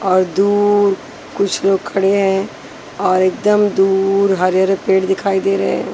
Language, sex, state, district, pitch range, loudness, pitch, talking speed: Hindi, female, Maharashtra, Washim, 190-200 Hz, -15 LUFS, 195 Hz, 160 wpm